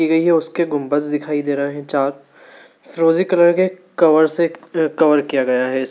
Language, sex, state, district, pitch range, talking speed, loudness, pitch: Hindi, male, Madhya Pradesh, Dhar, 145-170 Hz, 205 wpm, -17 LUFS, 155 Hz